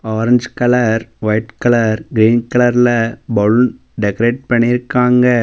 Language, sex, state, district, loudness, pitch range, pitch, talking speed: Tamil, male, Tamil Nadu, Namakkal, -14 LUFS, 110-125 Hz, 120 Hz, 100 wpm